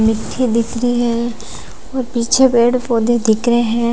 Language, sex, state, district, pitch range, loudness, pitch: Hindi, female, Uttar Pradesh, Lalitpur, 230-245 Hz, -16 LUFS, 235 Hz